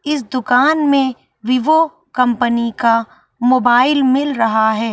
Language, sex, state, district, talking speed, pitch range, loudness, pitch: Hindi, female, Bihar, Saharsa, 120 wpm, 235-280 Hz, -15 LUFS, 250 Hz